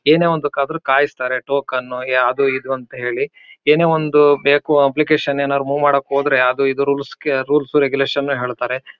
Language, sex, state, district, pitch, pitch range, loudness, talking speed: Kannada, male, Karnataka, Shimoga, 140 Hz, 130-145 Hz, -17 LUFS, 165 wpm